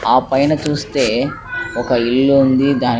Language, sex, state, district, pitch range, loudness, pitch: Telugu, male, Andhra Pradesh, Krishna, 130-150 Hz, -15 LUFS, 135 Hz